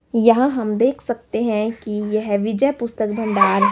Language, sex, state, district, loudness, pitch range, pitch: Hindi, male, Himachal Pradesh, Shimla, -19 LUFS, 210-235 Hz, 225 Hz